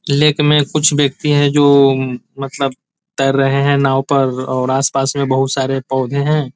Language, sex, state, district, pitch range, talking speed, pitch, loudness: Hindi, male, Bihar, East Champaran, 135-145 Hz, 175 wpm, 135 Hz, -14 LUFS